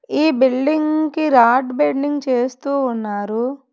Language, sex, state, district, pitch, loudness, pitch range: Telugu, female, Telangana, Hyderabad, 265 Hz, -17 LUFS, 245-295 Hz